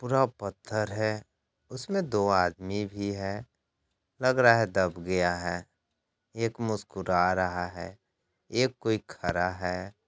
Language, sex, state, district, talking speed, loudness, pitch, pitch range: Hindi, male, Bihar, Sitamarhi, 130 wpm, -29 LUFS, 100 Hz, 90-110 Hz